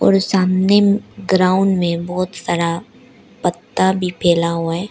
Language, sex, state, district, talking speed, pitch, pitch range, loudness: Hindi, female, Arunachal Pradesh, Lower Dibang Valley, 135 wpm, 185 Hz, 170-195 Hz, -17 LUFS